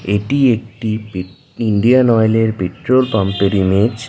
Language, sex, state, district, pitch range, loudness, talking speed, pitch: Bengali, male, West Bengal, Jhargram, 100-120 Hz, -15 LUFS, 145 wpm, 110 Hz